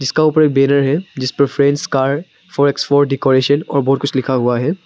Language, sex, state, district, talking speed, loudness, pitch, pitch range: Hindi, male, Arunachal Pradesh, Papum Pare, 175 wpm, -15 LUFS, 140 Hz, 135-145 Hz